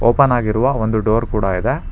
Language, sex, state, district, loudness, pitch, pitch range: Kannada, male, Karnataka, Bangalore, -17 LUFS, 115 Hz, 110-125 Hz